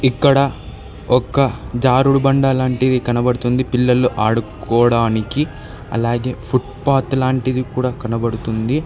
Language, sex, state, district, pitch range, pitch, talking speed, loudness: Telugu, male, Telangana, Hyderabad, 115-130 Hz, 125 Hz, 90 wpm, -17 LUFS